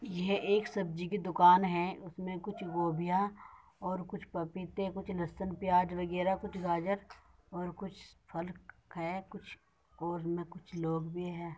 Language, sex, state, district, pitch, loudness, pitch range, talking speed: Hindi, female, Uttar Pradesh, Muzaffarnagar, 180 Hz, -34 LUFS, 175-195 Hz, 150 wpm